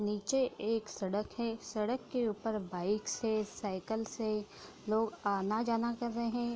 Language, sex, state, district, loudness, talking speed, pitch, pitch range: Hindi, female, Bihar, Darbhanga, -35 LUFS, 145 wpm, 220 Hz, 210-235 Hz